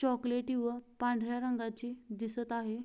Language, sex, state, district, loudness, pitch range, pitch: Marathi, female, Maharashtra, Sindhudurg, -36 LUFS, 230-245 Hz, 240 Hz